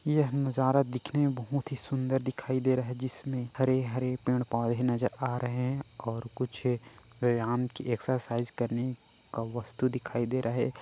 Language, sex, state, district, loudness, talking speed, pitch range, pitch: Chhattisgarhi, male, Chhattisgarh, Korba, -31 LUFS, 160 wpm, 120-130 Hz, 125 Hz